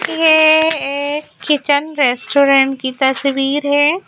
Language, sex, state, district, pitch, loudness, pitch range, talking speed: Hindi, female, Madhya Pradesh, Bhopal, 285 Hz, -14 LUFS, 270-310 Hz, 105 wpm